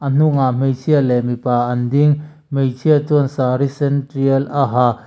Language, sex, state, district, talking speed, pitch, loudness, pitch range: Mizo, male, Mizoram, Aizawl, 165 wpm, 135 Hz, -16 LUFS, 125-145 Hz